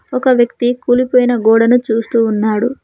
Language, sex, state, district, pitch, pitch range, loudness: Telugu, female, Telangana, Mahabubabad, 240 Hz, 225-250 Hz, -13 LUFS